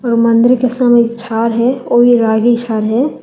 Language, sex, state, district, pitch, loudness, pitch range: Hindi, female, Telangana, Hyderabad, 235 Hz, -12 LUFS, 230-245 Hz